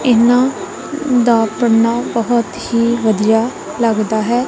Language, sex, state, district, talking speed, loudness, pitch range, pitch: Punjabi, female, Punjab, Kapurthala, 105 wpm, -15 LUFS, 225-240 Hz, 235 Hz